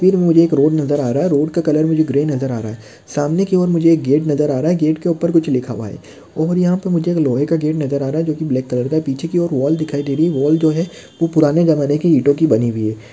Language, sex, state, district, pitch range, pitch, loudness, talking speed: Hindi, male, Maharashtra, Chandrapur, 140-165 Hz, 155 Hz, -16 LUFS, 325 wpm